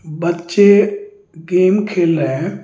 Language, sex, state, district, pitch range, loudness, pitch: Hindi, male, Delhi, New Delhi, 170-205 Hz, -14 LUFS, 180 Hz